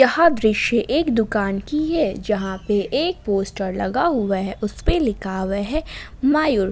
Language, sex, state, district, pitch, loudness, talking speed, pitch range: Hindi, female, Jharkhand, Ranchi, 215 Hz, -21 LUFS, 170 wpm, 195-295 Hz